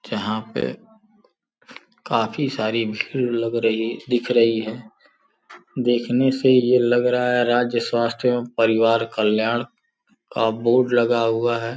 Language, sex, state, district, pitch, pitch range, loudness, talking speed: Hindi, male, Uttar Pradesh, Gorakhpur, 120 Hz, 115-125 Hz, -20 LUFS, 125 wpm